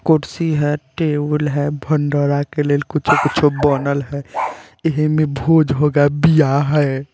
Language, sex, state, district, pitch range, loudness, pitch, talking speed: Hindi, male, Chandigarh, Chandigarh, 145-155 Hz, -17 LUFS, 145 Hz, 150 wpm